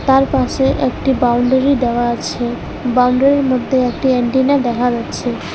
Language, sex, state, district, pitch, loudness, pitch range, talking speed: Bengali, female, West Bengal, Alipurduar, 255 Hz, -15 LUFS, 240-265 Hz, 130 wpm